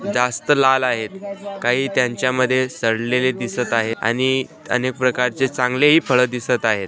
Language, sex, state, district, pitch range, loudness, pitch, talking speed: Marathi, male, Maharashtra, Sindhudurg, 125-130 Hz, -19 LUFS, 125 Hz, 120 wpm